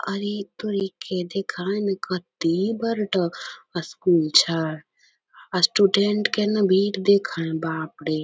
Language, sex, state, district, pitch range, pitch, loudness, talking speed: Angika, female, Bihar, Bhagalpur, 165-200 Hz, 190 Hz, -23 LUFS, 125 wpm